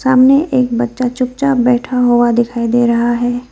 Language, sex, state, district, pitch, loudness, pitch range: Hindi, female, West Bengal, Alipurduar, 245 Hz, -13 LUFS, 240-255 Hz